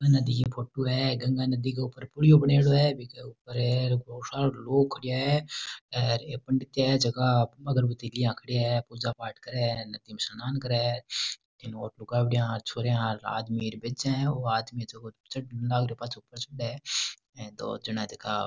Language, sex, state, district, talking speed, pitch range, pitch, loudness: Rajasthani, male, Rajasthan, Nagaur, 200 wpm, 115-130 Hz, 125 Hz, -28 LUFS